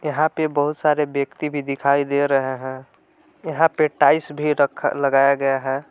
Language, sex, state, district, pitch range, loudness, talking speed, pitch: Hindi, male, Jharkhand, Palamu, 135-150 Hz, -20 LUFS, 185 wpm, 140 Hz